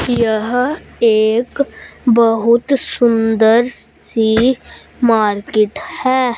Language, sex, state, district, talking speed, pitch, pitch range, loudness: Hindi, female, Punjab, Fazilka, 65 wpm, 235 Hz, 220-250 Hz, -15 LUFS